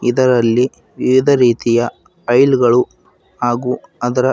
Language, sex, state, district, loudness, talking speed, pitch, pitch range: Kannada, male, Karnataka, Bidar, -15 LUFS, 95 wpm, 125 Hz, 120-130 Hz